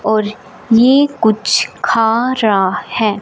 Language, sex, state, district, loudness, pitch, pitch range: Hindi, female, Punjab, Fazilka, -13 LUFS, 220 Hz, 210-235 Hz